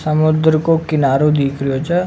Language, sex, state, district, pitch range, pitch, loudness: Rajasthani, male, Rajasthan, Nagaur, 140-160 Hz, 155 Hz, -15 LUFS